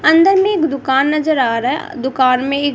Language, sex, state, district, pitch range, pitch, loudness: Hindi, female, Bihar, Kaimur, 265-315 Hz, 280 Hz, -15 LUFS